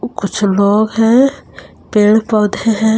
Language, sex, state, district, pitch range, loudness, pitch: Hindi, female, Jharkhand, Palamu, 210-225 Hz, -13 LUFS, 220 Hz